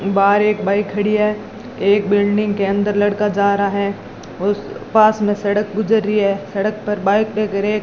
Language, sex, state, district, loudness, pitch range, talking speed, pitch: Hindi, female, Rajasthan, Bikaner, -17 LUFS, 200-210 Hz, 185 wpm, 205 Hz